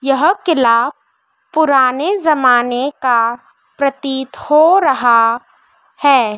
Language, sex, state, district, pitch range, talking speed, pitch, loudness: Hindi, female, Madhya Pradesh, Dhar, 240-300 Hz, 85 wpm, 270 Hz, -13 LUFS